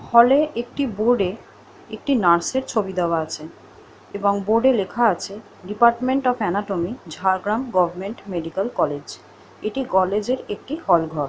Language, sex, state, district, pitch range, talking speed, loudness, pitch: Bengali, female, West Bengal, Jhargram, 180-240 Hz, 145 wpm, -21 LUFS, 205 Hz